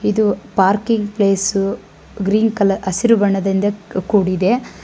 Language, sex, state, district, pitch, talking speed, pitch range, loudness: Kannada, female, Karnataka, Bangalore, 200 Hz, 100 wpm, 195-210 Hz, -17 LUFS